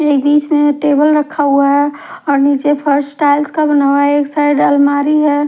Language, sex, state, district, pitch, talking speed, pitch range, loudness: Hindi, female, Himachal Pradesh, Shimla, 290 Hz, 210 wpm, 285-295 Hz, -12 LUFS